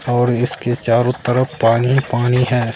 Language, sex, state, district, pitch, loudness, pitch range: Hindi, male, Bihar, Katihar, 125 Hz, -16 LUFS, 120-125 Hz